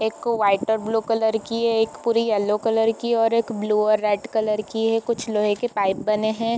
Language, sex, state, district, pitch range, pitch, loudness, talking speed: Hindi, female, Bihar, East Champaran, 215-230 Hz, 220 Hz, -22 LUFS, 265 wpm